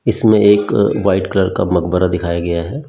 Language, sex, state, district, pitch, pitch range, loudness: Hindi, male, Delhi, New Delhi, 90 Hz, 85-110 Hz, -14 LUFS